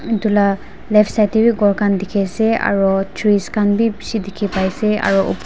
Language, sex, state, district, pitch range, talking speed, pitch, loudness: Nagamese, female, Nagaland, Dimapur, 195-215 Hz, 175 wpm, 205 Hz, -16 LUFS